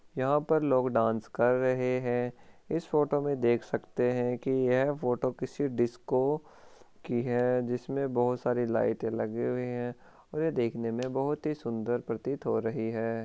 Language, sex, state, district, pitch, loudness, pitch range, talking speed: Hindi, male, Rajasthan, Churu, 125 Hz, -30 LUFS, 120-135 Hz, 170 wpm